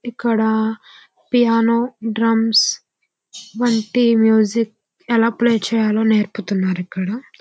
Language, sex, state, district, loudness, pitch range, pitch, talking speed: Telugu, female, Andhra Pradesh, Visakhapatnam, -17 LUFS, 220-235 Hz, 225 Hz, 80 wpm